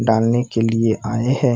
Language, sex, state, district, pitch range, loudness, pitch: Hindi, male, Bihar, Purnia, 110-120 Hz, -18 LUFS, 115 Hz